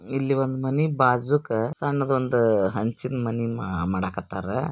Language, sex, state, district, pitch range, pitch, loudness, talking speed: Kannada, male, Karnataka, Bijapur, 110-135 Hz, 125 Hz, -24 LUFS, 100 wpm